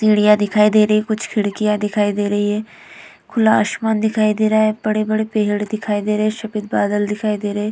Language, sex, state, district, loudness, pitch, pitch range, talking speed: Hindi, female, Uttar Pradesh, Hamirpur, -17 LUFS, 215 Hz, 210-215 Hz, 225 wpm